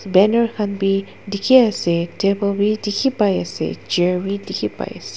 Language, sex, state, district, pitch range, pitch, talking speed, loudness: Nagamese, female, Nagaland, Dimapur, 195-215 Hz, 200 Hz, 140 wpm, -19 LUFS